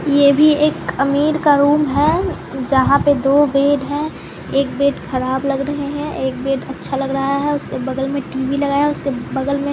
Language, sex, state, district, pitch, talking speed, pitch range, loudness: Hindi, female, Bihar, Patna, 280 Hz, 205 wpm, 270-290 Hz, -17 LUFS